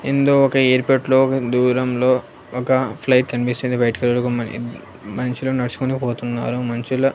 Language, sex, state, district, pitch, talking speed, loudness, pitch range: Telugu, male, Andhra Pradesh, Annamaya, 125 Hz, 110 wpm, -19 LUFS, 120-130 Hz